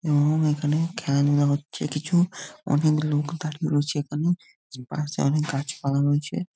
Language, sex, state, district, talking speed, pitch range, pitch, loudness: Bengali, male, West Bengal, Jhargram, 135 wpm, 145-155 Hz, 150 Hz, -24 LUFS